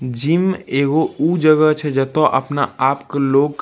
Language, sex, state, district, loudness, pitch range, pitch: Maithili, male, Bihar, Darbhanga, -17 LUFS, 135-155 Hz, 145 Hz